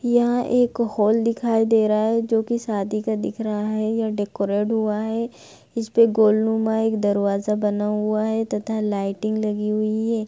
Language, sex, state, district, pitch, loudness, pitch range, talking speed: Hindi, female, Bihar, Begusarai, 220 Hz, -21 LUFS, 210-225 Hz, 180 wpm